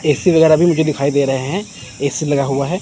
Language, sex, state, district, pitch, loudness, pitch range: Hindi, male, Chandigarh, Chandigarh, 145 Hz, -15 LUFS, 140-160 Hz